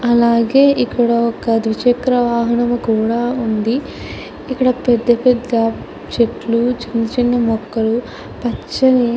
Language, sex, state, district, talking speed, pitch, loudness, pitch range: Telugu, female, Andhra Pradesh, Chittoor, 110 wpm, 235 Hz, -16 LUFS, 230-245 Hz